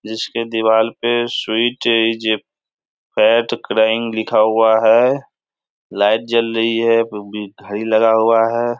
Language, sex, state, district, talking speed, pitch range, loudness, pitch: Hindi, male, Bihar, Samastipur, 130 wpm, 110-115 Hz, -16 LUFS, 115 Hz